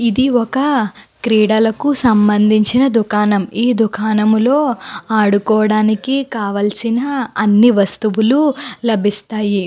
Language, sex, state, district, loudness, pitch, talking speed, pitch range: Telugu, female, Andhra Pradesh, Guntur, -14 LUFS, 220 Hz, 80 wpm, 210-245 Hz